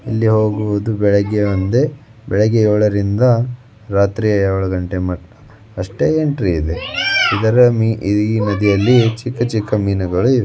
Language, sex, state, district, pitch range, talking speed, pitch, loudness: Kannada, male, Karnataka, Belgaum, 100-115 Hz, 115 wpm, 105 Hz, -16 LUFS